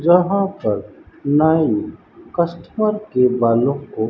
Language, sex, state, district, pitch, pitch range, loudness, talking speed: Hindi, male, Rajasthan, Bikaner, 155 Hz, 120-175 Hz, -18 LUFS, 100 wpm